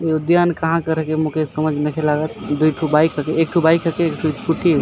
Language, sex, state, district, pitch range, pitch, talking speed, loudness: Sadri, male, Chhattisgarh, Jashpur, 155-165 Hz, 155 Hz, 200 wpm, -18 LUFS